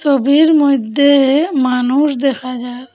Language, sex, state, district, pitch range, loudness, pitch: Bengali, female, Assam, Hailakandi, 255-285 Hz, -13 LUFS, 275 Hz